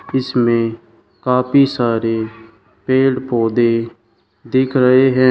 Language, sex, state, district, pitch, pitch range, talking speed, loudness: Hindi, male, Uttar Pradesh, Shamli, 120 Hz, 115-130 Hz, 90 wpm, -16 LUFS